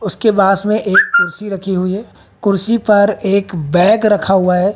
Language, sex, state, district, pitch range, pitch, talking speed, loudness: Hindi, female, Haryana, Jhajjar, 190-215 Hz, 200 Hz, 190 wpm, -13 LUFS